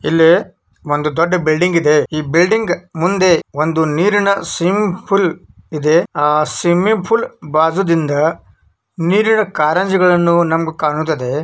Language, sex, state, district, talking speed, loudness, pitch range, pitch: Kannada, male, Karnataka, Belgaum, 105 wpm, -14 LUFS, 155-185 Hz, 165 Hz